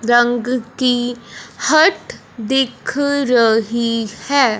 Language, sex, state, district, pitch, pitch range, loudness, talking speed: Hindi, male, Punjab, Fazilka, 245 Hz, 235-265 Hz, -16 LUFS, 90 wpm